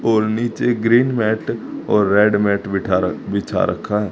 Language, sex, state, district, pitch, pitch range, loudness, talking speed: Hindi, male, Haryana, Charkhi Dadri, 105 Hz, 100-115 Hz, -18 LUFS, 160 wpm